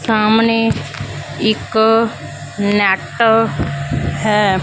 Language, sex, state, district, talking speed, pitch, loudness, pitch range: Punjabi, female, Punjab, Fazilka, 50 wpm, 200 Hz, -15 LUFS, 140-220 Hz